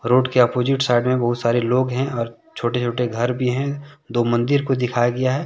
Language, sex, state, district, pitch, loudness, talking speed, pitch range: Hindi, male, Jharkhand, Deoghar, 125 Hz, -20 LUFS, 230 wpm, 120-130 Hz